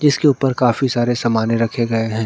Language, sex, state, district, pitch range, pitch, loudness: Hindi, male, Jharkhand, Garhwa, 115-135 Hz, 120 Hz, -17 LUFS